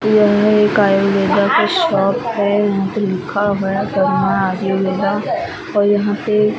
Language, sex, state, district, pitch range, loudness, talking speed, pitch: Hindi, female, Maharashtra, Mumbai Suburban, 195-210 Hz, -15 LUFS, 155 wpm, 205 Hz